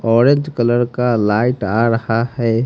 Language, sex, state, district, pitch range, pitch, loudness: Hindi, male, Haryana, Rohtak, 115-120 Hz, 120 Hz, -16 LUFS